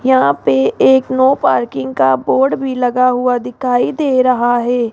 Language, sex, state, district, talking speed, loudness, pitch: Hindi, female, Rajasthan, Jaipur, 170 wpm, -14 LUFS, 245 Hz